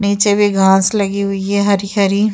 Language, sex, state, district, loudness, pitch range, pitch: Hindi, female, Uttar Pradesh, Jyotiba Phule Nagar, -14 LUFS, 195-205 Hz, 200 Hz